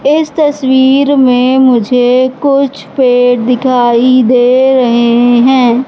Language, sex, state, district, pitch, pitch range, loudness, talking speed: Hindi, female, Madhya Pradesh, Katni, 255 Hz, 245-265 Hz, -8 LUFS, 100 wpm